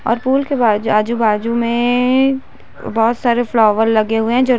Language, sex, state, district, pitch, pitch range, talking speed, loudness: Hindi, female, Chhattisgarh, Bilaspur, 235 Hz, 225-250 Hz, 185 wpm, -15 LUFS